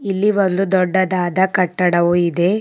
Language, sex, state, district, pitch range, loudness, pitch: Kannada, female, Karnataka, Bidar, 175-195 Hz, -16 LUFS, 185 Hz